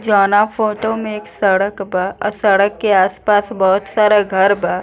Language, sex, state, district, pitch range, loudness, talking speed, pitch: Bhojpuri, female, Bihar, East Champaran, 195-210 Hz, -15 LUFS, 175 wpm, 205 Hz